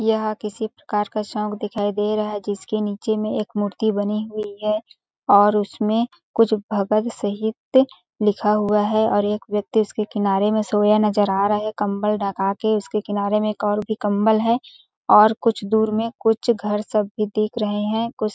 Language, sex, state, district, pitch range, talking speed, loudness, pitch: Hindi, female, Chhattisgarh, Balrampur, 205-220 Hz, 200 wpm, -21 LUFS, 210 Hz